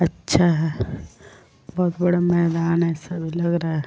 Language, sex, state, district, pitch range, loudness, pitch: Hindi, female, Bihar, Vaishali, 160-175 Hz, -21 LUFS, 170 Hz